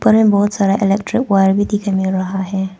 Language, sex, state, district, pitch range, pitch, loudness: Hindi, female, Arunachal Pradesh, Papum Pare, 190-205 Hz, 195 Hz, -15 LUFS